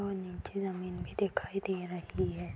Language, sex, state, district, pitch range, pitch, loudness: Hindi, female, Uttar Pradesh, Budaun, 175-195 Hz, 185 Hz, -37 LUFS